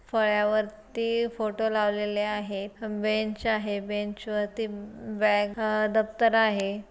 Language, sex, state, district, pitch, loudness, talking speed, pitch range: Marathi, female, Maharashtra, Solapur, 215 Hz, -27 LUFS, 95 wpm, 210-220 Hz